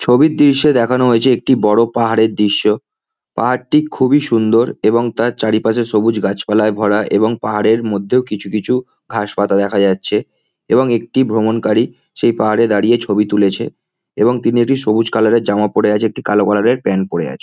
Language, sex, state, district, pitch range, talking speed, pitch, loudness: Bengali, male, West Bengal, Kolkata, 105-120 Hz, 180 wpm, 110 Hz, -14 LUFS